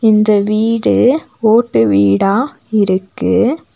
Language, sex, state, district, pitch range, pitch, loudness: Tamil, female, Tamil Nadu, Nilgiris, 195-235 Hz, 215 Hz, -13 LUFS